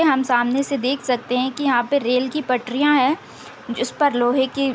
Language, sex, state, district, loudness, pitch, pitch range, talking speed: Hindi, female, Uttar Pradesh, Deoria, -20 LUFS, 260 Hz, 245-280 Hz, 215 wpm